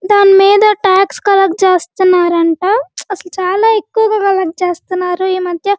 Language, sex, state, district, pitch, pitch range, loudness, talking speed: Telugu, female, Andhra Pradesh, Guntur, 385 Hz, 365-405 Hz, -11 LUFS, 145 wpm